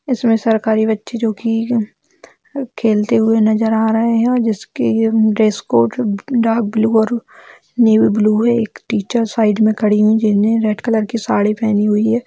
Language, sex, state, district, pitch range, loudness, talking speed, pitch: Hindi, female, Bihar, Sitamarhi, 215-230 Hz, -15 LUFS, 180 wpm, 220 Hz